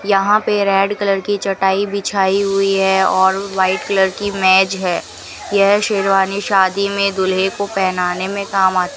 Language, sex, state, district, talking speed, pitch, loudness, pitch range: Hindi, female, Rajasthan, Bikaner, 175 wpm, 195 Hz, -15 LUFS, 190-200 Hz